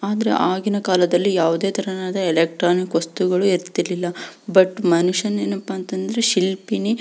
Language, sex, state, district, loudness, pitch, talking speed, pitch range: Kannada, female, Karnataka, Belgaum, -20 LUFS, 185 Hz, 120 wpm, 180-195 Hz